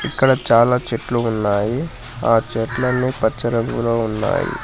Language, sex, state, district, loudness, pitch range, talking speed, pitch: Telugu, male, Telangana, Hyderabad, -18 LUFS, 115-130 Hz, 115 wpm, 120 Hz